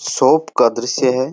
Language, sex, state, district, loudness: Rajasthani, male, Rajasthan, Churu, -15 LUFS